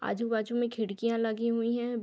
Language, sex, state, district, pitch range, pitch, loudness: Hindi, female, Jharkhand, Sahebganj, 225-235 Hz, 230 Hz, -31 LUFS